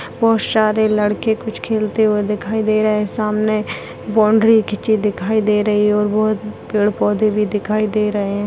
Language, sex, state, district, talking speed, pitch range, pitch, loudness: Hindi, female, Bihar, Begusarai, 170 wpm, 210-220 Hz, 215 Hz, -17 LUFS